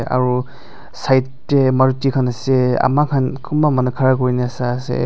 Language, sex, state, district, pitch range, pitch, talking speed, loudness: Nagamese, male, Nagaland, Dimapur, 125-135 Hz, 130 Hz, 180 wpm, -17 LUFS